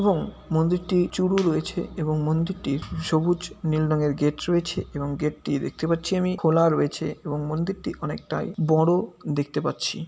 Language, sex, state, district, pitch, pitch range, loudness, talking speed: Bengali, male, West Bengal, Malda, 165 Hz, 155-180 Hz, -25 LUFS, 160 wpm